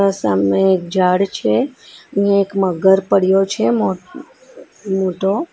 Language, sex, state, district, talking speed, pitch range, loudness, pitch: Gujarati, female, Gujarat, Valsad, 120 wpm, 185-200 Hz, -16 LUFS, 195 Hz